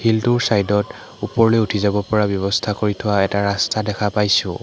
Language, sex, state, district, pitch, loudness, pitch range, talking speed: Assamese, male, Assam, Hailakandi, 105 Hz, -18 LUFS, 100-110 Hz, 170 wpm